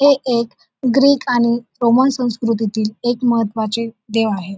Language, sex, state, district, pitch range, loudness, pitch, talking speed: Marathi, female, Maharashtra, Dhule, 220-245 Hz, -17 LUFS, 235 Hz, 130 wpm